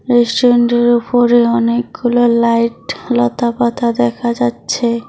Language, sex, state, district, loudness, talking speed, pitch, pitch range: Bengali, female, West Bengal, Cooch Behar, -13 LUFS, 95 wpm, 235 Hz, 230-240 Hz